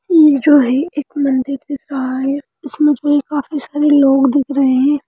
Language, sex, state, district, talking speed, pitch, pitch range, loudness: Hindi, female, Bihar, Lakhisarai, 210 wpm, 285 Hz, 275-295 Hz, -14 LUFS